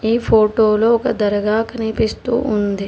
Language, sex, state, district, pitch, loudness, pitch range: Telugu, female, Telangana, Hyderabad, 220 Hz, -16 LUFS, 210-230 Hz